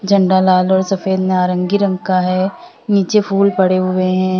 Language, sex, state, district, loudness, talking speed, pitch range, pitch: Hindi, female, Uttar Pradesh, Lalitpur, -15 LUFS, 180 wpm, 185-195 Hz, 190 Hz